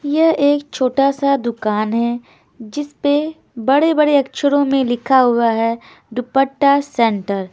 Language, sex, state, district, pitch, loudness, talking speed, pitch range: Hindi, female, Himachal Pradesh, Shimla, 270 Hz, -16 LUFS, 125 wpm, 235-285 Hz